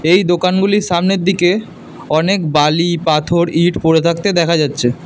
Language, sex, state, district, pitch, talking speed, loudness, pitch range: Bengali, male, Karnataka, Bangalore, 170 Hz, 140 wpm, -14 LUFS, 160-185 Hz